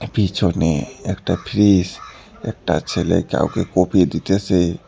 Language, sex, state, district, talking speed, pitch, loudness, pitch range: Bengali, male, West Bengal, Alipurduar, 100 wpm, 90 Hz, -19 LUFS, 85-100 Hz